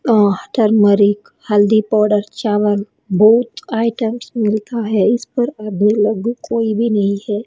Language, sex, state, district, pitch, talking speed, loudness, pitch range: Hindi, female, Bihar, Patna, 215 Hz, 135 wpm, -15 LUFS, 205-230 Hz